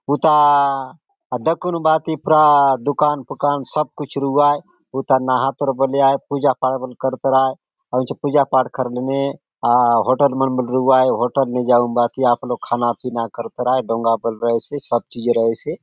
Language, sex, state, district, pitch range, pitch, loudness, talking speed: Halbi, male, Chhattisgarh, Bastar, 125-145 Hz, 130 Hz, -18 LUFS, 165 wpm